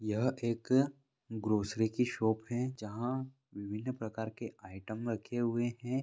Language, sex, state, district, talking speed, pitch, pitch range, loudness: Hindi, male, Bihar, Vaishali, 140 wpm, 115 Hz, 110-130 Hz, -36 LUFS